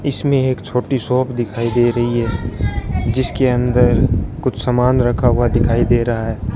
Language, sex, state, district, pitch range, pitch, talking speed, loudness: Hindi, male, Rajasthan, Bikaner, 115-130 Hz, 120 Hz, 165 wpm, -17 LUFS